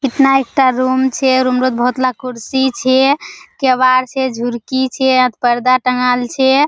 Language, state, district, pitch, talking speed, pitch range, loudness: Surjapuri, Bihar, Kishanganj, 255 Hz, 160 wpm, 250-265 Hz, -14 LUFS